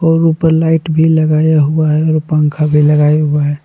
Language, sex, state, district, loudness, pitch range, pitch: Hindi, male, Jharkhand, Palamu, -11 LUFS, 150-160 Hz, 155 Hz